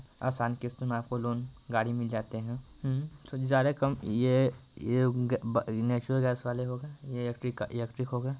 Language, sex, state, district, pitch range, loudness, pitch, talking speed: Hindi, male, Bihar, Muzaffarpur, 120-130 Hz, -32 LUFS, 125 Hz, 185 wpm